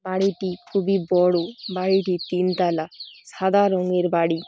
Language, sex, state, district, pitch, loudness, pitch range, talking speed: Bengali, female, West Bengal, Dakshin Dinajpur, 185 Hz, -22 LUFS, 175-190 Hz, 120 wpm